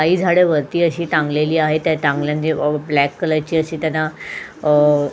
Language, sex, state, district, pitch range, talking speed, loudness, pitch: Marathi, female, Goa, North and South Goa, 150-160 Hz, 165 wpm, -17 LUFS, 155 Hz